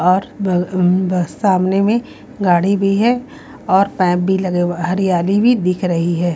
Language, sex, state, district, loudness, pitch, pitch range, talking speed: Hindi, female, Haryana, Rohtak, -16 LUFS, 185 Hz, 180-200 Hz, 170 wpm